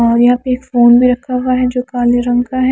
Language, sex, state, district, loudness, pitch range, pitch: Hindi, female, Haryana, Charkhi Dadri, -12 LUFS, 245-250 Hz, 250 Hz